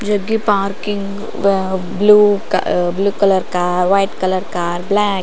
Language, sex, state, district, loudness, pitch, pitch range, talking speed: Kannada, female, Karnataka, Raichur, -16 LUFS, 195 Hz, 185-205 Hz, 150 wpm